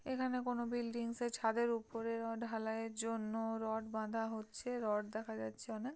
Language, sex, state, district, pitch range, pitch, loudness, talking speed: Bengali, female, West Bengal, Purulia, 220-235 Hz, 225 Hz, -40 LUFS, 180 wpm